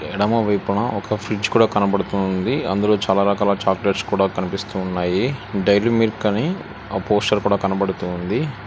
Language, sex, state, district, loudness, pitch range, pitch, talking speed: Telugu, male, Telangana, Hyderabad, -20 LUFS, 95-105 Hz, 100 Hz, 145 wpm